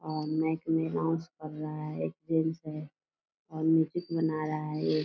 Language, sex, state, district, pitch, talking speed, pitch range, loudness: Hindi, female, Bihar, Purnia, 155 Hz, 200 wpm, 155-160 Hz, -32 LUFS